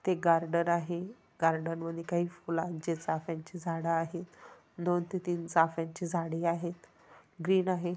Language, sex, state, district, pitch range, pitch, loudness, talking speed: Marathi, female, Maharashtra, Dhule, 165-175 Hz, 170 Hz, -32 LUFS, 145 wpm